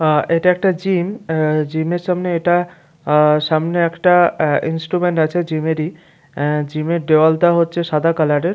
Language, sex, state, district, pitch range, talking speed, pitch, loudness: Bengali, male, West Bengal, Paschim Medinipur, 155-175 Hz, 160 wpm, 165 Hz, -16 LUFS